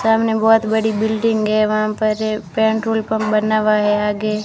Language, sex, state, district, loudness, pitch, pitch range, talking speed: Hindi, female, Rajasthan, Bikaner, -17 LUFS, 215 Hz, 215-220 Hz, 190 wpm